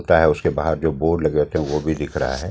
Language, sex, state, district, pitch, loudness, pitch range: Hindi, male, Delhi, New Delhi, 80 Hz, -20 LUFS, 75-80 Hz